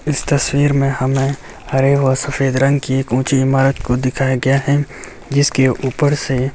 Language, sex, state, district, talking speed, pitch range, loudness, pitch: Hindi, male, Bihar, Samastipur, 175 wpm, 130-140 Hz, -16 LUFS, 135 Hz